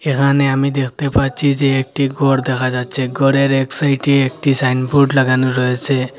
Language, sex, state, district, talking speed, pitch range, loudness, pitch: Bengali, male, Assam, Hailakandi, 155 wpm, 130-140 Hz, -15 LUFS, 135 Hz